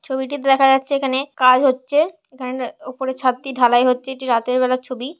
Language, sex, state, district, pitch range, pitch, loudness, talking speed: Bengali, female, West Bengal, Jhargram, 255-270 Hz, 260 Hz, -18 LUFS, 175 wpm